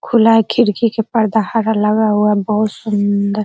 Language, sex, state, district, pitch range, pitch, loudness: Hindi, female, Bihar, Araria, 210-225 Hz, 220 Hz, -14 LUFS